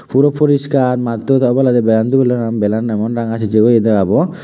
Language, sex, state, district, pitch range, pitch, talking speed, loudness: Chakma, male, Tripura, West Tripura, 110-135 Hz, 120 Hz, 160 wpm, -14 LUFS